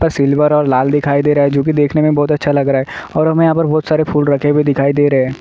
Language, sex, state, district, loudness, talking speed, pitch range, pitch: Hindi, male, Uttar Pradesh, Jalaun, -13 LUFS, 310 wpm, 140-155 Hz, 145 Hz